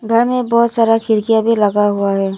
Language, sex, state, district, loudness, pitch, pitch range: Hindi, female, Arunachal Pradesh, Lower Dibang Valley, -14 LUFS, 225 Hz, 205-230 Hz